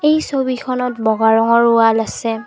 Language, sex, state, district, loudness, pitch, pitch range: Assamese, female, Assam, Kamrup Metropolitan, -15 LUFS, 235 Hz, 225-255 Hz